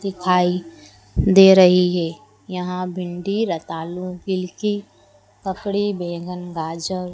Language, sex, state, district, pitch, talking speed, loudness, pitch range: Hindi, female, Madhya Pradesh, Dhar, 180 Hz, 100 wpm, -20 LUFS, 165-190 Hz